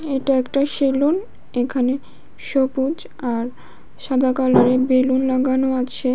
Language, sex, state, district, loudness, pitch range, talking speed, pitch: Bengali, female, Tripura, West Tripura, -19 LUFS, 255-275 Hz, 105 wpm, 265 Hz